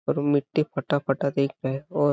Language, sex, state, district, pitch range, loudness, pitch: Hindi, male, Chhattisgarh, Balrampur, 135-145 Hz, -25 LUFS, 140 Hz